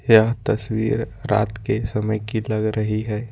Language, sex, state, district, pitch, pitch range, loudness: Hindi, male, Jharkhand, Ranchi, 110 Hz, 105-110 Hz, -22 LUFS